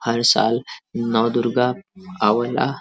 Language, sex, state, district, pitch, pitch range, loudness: Bhojpuri, male, Uttar Pradesh, Varanasi, 120 Hz, 115-125 Hz, -20 LUFS